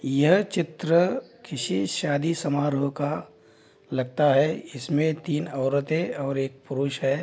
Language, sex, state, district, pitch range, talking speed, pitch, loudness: Hindi, male, Bihar, Darbhanga, 135-160 Hz, 125 wpm, 145 Hz, -25 LUFS